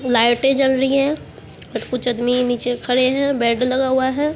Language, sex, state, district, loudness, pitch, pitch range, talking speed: Hindi, female, Bihar, Katihar, -18 LUFS, 255 Hz, 245-270 Hz, 190 wpm